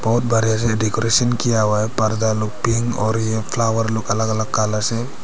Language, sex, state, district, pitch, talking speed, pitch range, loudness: Hindi, male, Arunachal Pradesh, Papum Pare, 110 Hz, 215 wpm, 110-115 Hz, -19 LUFS